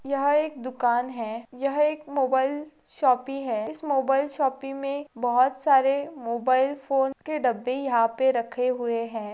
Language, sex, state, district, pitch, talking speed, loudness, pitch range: Hindi, female, Chhattisgarh, Rajnandgaon, 265 Hz, 140 wpm, -25 LUFS, 245-280 Hz